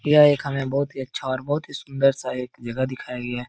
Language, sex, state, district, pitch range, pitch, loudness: Hindi, male, Uttar Pradesh, Etah, 125-140 Hz, 135 Hz, -23 LUFS